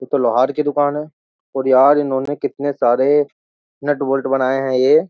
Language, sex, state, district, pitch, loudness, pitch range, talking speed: Hindi, male, Uttar Pradesh, Jyotiba Phule Nagar, 140 Hz, -17 LUFS, 135-145 Hz, 200 wpm